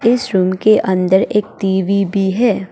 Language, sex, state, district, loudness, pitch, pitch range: Hindi, female, Arunachal Pradesh, Papum Pare, -15 LUFS, 195 Hz, 190-215 Hz